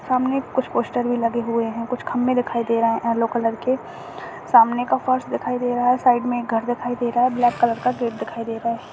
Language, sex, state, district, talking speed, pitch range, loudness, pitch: Hindi, male, Chhattisgarh, Bastar, 255 wpm, 230-250 Hz, -21 LUFS, 240 Hz